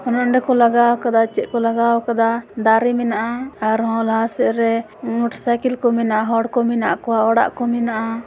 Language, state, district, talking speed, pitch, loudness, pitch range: Santali, Jharkhand, Sahebganj, 80 wpm, 235 Hz, -18 LUFS, 225-240 Hz